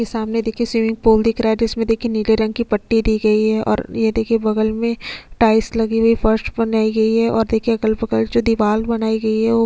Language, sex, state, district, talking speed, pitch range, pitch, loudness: Hindi, female, Chhattisgarh, Sukma, 250 wpm, 220-230 Hz, 225 Hz, -17 LUFS